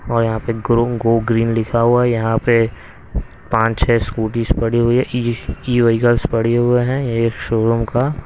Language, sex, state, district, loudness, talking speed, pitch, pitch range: Hindi, male, Haryana, Rohtak, -17 LUFS, 175 wpm, 115 Hz, 115-120 Hz